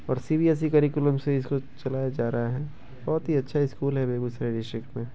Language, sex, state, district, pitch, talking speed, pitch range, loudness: Maithili, male, Bihar, Begusarai, 135 Hz, 200 wpm, 125-145 Hz, -27 LUFS